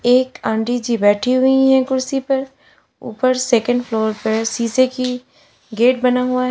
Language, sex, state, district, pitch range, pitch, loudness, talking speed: Hindi, female, Uttar Pradesh, Lalitpur, 235-260 Hz, 250 Hz, -17 LUFS, 165 wpm